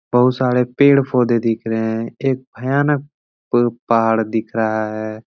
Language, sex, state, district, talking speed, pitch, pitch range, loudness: Hindi, male, Uttar Pradesh, Etah, 160 wpm, 120 Hz, 110-130 Hz, -18 LUFS